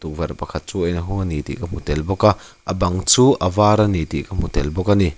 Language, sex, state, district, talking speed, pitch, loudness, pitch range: Mizo, male, Mizoram, Aizawl, 290 wpm, 90 Hz, -19 LUFS, 75-100 Hz